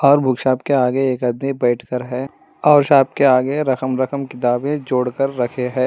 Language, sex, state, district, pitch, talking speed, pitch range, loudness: Hindi, male, Telangana, Hyderabad, 130 Hz, 185 wpm, 125-140 Hz, -17 LUFS